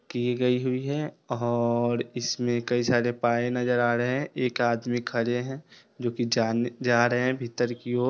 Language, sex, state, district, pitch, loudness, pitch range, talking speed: Hindi, male, Bihar, Sitamarhi, 120 Hz, -26 LUFS, 120-125 Hz, 185 wpm